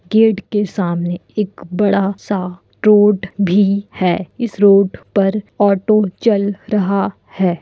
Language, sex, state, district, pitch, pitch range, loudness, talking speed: Hindi, female, Bihar, Kishanganj, 200 Hz, 185-210 Hz, -16 LUFS, 120 wpm